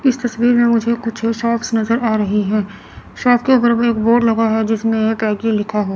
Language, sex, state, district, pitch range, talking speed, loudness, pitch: Hindi, female, Chandigarh, Chandigarh, 220-235 Hz, 200 wpm, -16 LUFS, 225 Hz